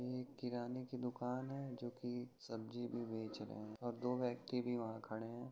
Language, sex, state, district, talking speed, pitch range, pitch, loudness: Hindi, male, Uttar Pradesh, Hamirpur, 205 wpm, 115-125 Hz, 120 Hz, -45 LUFS